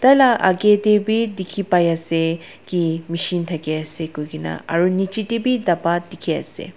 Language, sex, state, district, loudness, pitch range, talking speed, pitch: Nagamese, female, Nagaland, Dimapur, -19 LUFS, 165-205 Hz, 150 wpm, 175 Hz